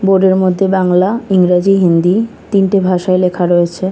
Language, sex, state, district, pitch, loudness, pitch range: Bengali, female, West Bengal, Kolkata, 185 Hz, -12 LUFS, 180-195 Hz